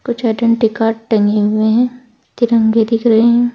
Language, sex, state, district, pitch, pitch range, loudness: Hindi, female, Uttar Pradesh, Saharanpur, 230 Hz, 225-240 Hz, -13 LUFS